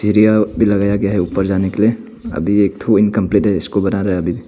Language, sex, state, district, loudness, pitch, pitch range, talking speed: Hindi, male, Arunachal Pradesh, Papum Pare, -15 LUFS, 100 Hz, 95-105 Hz, 240 wpm